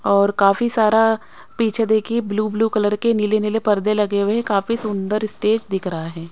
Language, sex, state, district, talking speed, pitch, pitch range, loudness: Hindi, female, Maharashtra, Mumbai Suburban, 200 wpm, 215 Hz, 200-225 Hz, -19 LUFS